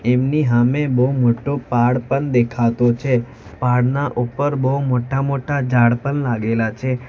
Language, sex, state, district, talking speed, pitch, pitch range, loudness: Gujarati, male, Gujarat, Valsad, 145 wpm, 125 Hz, 120-140 Hz, -18 LUFS